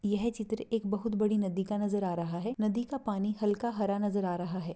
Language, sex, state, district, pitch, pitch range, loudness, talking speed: Hindi, female, Maharashtra, Nagpur, 210 Hz, 195-220 Hz, -32 LUFS, 250 wpm